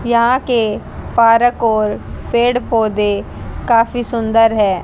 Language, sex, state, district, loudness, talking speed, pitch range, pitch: Hindi, female, Haryana, Jhajjar, -14 LUFS, 110 wpm, 215-240 Hz, 230 Hz